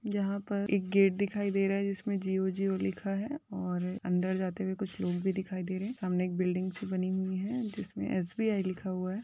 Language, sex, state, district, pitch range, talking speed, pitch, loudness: Hindi, female, Maharashtra, Nagpur, 185-200 Hz, 245 wpm, 190 Hz, -33 LUFS